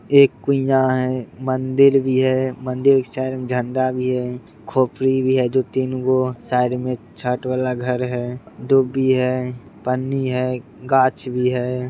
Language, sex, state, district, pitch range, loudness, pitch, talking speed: Angika, male, Bihar, Begusarai, 125-130 Hz, -20 LUFS, 130 Hz, 165 wpm